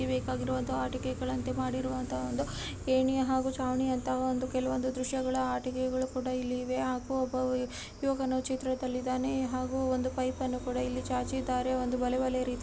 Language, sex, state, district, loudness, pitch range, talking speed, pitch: Kannada, female, Karnataka, Gulbarga, -32 LUFS, 250-260 Hz, 135 wpm, 255 Hz